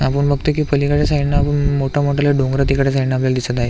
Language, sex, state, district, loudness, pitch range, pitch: Marathi, male, Maharashtra, Aurangabad, -17 LUFS, 135-145 Hz, 140 Hz